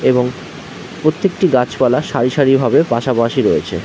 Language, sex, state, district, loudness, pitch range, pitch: Bengali, male, West Bengal, Jhargram, -15 LUFS, 120-145 Hz, 130 Hz